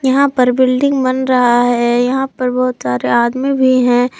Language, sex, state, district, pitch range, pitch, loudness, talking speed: Hindi, female, Jharkhand, Palamu, 245-260 Hz, 255 Hz, -13 LUFS, 185 wpm